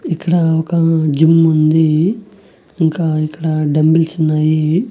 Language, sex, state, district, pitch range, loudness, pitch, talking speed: Telugu, male, Andhra Pradesh, Annamaya, 155-165 Hz, -14 LUFS, 160 Hz, 100 wpm